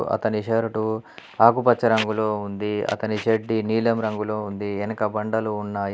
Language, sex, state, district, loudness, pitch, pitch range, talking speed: Telugu, male, Telangana, Adilabad, -23 LUFS, 110 Hz, 105-110 Hz, 130 wpm